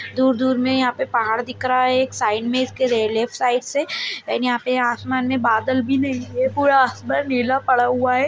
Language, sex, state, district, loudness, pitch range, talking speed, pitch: Hindi, female, Bihar, Jahanabad, -20 LUFS, 245-260 Hz, 225 wpm, 255 Hz